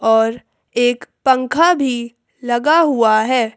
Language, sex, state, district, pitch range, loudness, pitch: Hindi, female, Madhya Pradesh, Bhopal, 230-265 Hz, -16 LUFS, 245 Hz